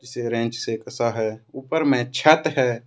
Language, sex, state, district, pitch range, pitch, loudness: Hindi, male, Jharkhand, Ranchi, 115-135 Hz, 120 Hz, -22 LUFS